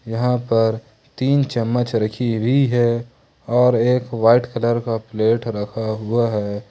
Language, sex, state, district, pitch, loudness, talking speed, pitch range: Hindi, male, Jharkhand, Ranchi, 115 Hz, -19 LUFS, 145 wpm, 110-120 Hz